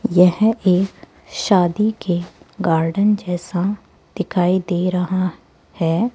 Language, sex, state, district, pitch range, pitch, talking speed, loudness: Hindi, female, Rajasthan, Jaipur, 175-205 Hz, 185 Hz, 100 wpm, -19 LUFS